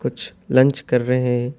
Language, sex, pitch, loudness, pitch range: Urdu, male, 125 Hz, -19 LUFS, 125-130 Hz